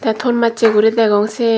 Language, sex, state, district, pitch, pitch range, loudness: Chakma, female, Tripura, Dhalai, 225 Hz, 220-235 Hz, -14 LUFS